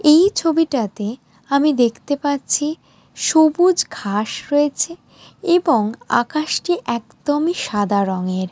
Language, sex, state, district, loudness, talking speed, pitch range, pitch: Bengali, female, West Bengal, Jalpaiguri, -18 LUFS, 90 wpm, 225-320 Hz, 285 Hz